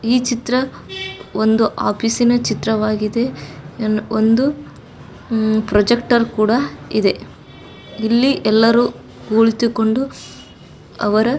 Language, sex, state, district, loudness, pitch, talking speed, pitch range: Kannada, female, Karnataka, Bijapur, -17 LUFS, 225 Hz, 75 wpm, 215-240 Hz